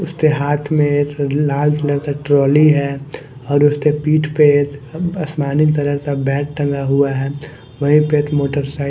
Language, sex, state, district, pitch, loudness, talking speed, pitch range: Hindi, male, Punjab, Kapurthala, 145 Hz, -16 LUFS, 170 wpm, 140-150 Hz